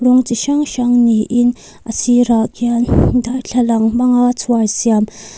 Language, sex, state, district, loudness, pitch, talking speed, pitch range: Mizo, female, Mizoram, Aizawl, -14 LUFS, 240 Hz, 145 wpm, 225-245 Hz